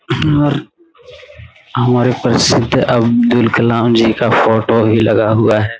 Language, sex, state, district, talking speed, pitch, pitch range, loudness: Hindi, male, Bihar, Saran, 115 wpm, 120 Hz, 115-130 Hz, -12 LUFS